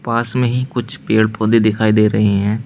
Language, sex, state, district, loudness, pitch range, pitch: Hindi, male, Uttar Pradesh, Shamli, -15 LUFS, 110-120 Hz, 110 Hz